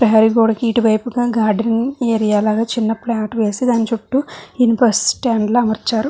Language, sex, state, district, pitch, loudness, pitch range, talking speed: Telugu, female, Andhra Pradesh, Visakhapatnam, 230 Hz, -16 LUFS, 220-240 Hz, 155 wpm